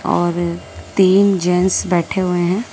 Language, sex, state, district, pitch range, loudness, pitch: Hindi, female, Delhi, New Delhi, 175-190 Hz, -16 LUFS, 180 Hz